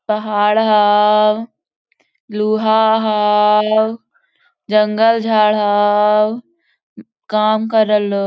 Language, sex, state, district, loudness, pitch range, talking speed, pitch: Hindi, female, Jharkhand, Sahebganj, -14 LUFS, 210-220 Hz, 85 wpm, 215 Hz